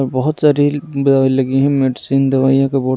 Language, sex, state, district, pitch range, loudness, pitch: Hindi, male, Delhi, New Delhi, 135-140 Hz, -14 LUFS, 135 Hz